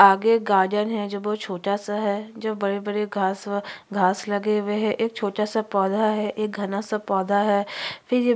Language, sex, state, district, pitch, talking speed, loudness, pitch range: Hindi, female, Chhattisgarh, Sukma, 205 Hz, 210 wpm, -24 LUFS, 200-215 Hz